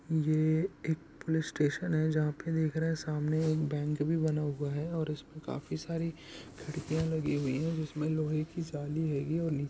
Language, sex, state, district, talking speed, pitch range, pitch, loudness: Hindi, male, Bihar, Saharsa, 180 wpm, 150-160 Hz, 155 Hz, -33 LUFS